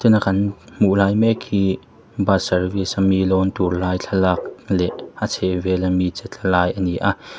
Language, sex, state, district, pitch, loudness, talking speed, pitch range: Mizo, male, Mizoram, Aizawl, 95 Hz, -20 LUFS, 160 wpm, 90-100 Hz